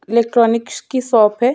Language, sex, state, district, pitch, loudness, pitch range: Hindi, female, Chhattisgarh, Sukma, 235 Hz, -15 LUFS, 225-245 Hz